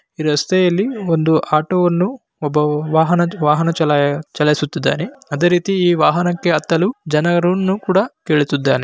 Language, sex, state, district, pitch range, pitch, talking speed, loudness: Kannada, male, Karnataka, Bellary, 150-180 Hz, 170 Hz, 110 wpm, -16 LUFS